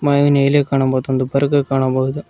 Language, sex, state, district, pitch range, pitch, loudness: Kannada, male, Karnataka, Koppal, 130-145 Hz, 140 Hz, -16 LUFS